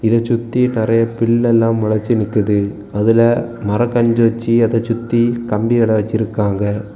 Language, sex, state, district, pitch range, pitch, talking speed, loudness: Tamil, male, Tamil Nadu, Kanyakumari, 110-115 Hz, 115 Hz, 120 wpm, -15 LUFS